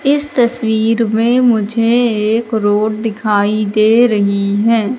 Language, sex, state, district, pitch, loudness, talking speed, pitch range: Hindi, female, Madhya Pradesh, Katni, 225 Hz, -13 LUFS, 120 wpm, 215-235 Hz